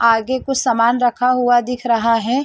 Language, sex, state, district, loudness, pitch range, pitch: Hindi, female, Chhattisgarh, Rajnandgaon, -16 LUFS, 230-250 Hz, 245 Hz